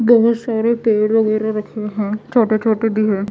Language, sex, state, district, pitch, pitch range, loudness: Hindi, female, Odisha, Malkangiri, 220 Hz, 215-230 Hz, -17 LUFS